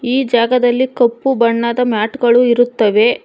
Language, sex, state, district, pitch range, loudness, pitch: Kannada, female, Karnataka, Bangalore, 235-250 Hz, -13 LUFS, 240 Hz